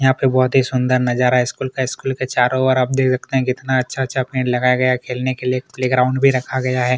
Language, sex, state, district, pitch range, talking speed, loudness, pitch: Hindi, male, Chhattisgarh, Kabirdham, 125-130 Hz, 265 wpm, -18 LUFS, 130 Hz